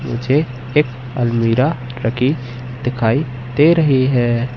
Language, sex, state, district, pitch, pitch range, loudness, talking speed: Hindi, male, Madhya Pradesh, Katni, 125 Hz, 125-135 Hz, -17 LUFS, 105 wpm